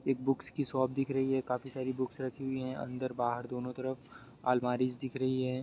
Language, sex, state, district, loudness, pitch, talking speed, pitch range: Hindi, male, Bihar, Sitamarhi, -35 LUFS, 130 Hz, 235 wpm, 125-130 Hz